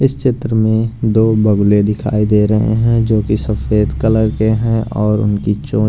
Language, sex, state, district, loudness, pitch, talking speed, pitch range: Hindi, male, Punjab, Pathankot, -14 LUFS, 110 Hz, 185 wpm, 105-110 Hz